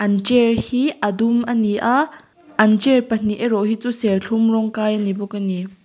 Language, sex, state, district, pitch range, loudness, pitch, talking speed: Mizo, female, Mizoram, Aizawl, 205-240 Hz, -18 LUFS, 225 Hz, 225 wpm